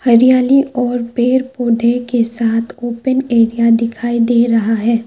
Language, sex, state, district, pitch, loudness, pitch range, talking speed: Hindi, female, Assam, Kamrup Metropolitan, 235 Hz, -14 LUFS, 230-245 Hz, 140 wpm